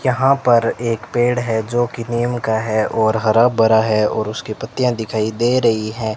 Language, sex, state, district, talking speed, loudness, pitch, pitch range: Hindi, male, Rajasthan, Bikaner, 205 wpm, -17 LUFS, 115 Hz, 110-120 Hz